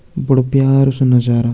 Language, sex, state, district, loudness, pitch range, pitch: Hindi, male, Uttarakhand, Tehri Garhwal, -13 LUFS, 120-135 Hz, 130 Hz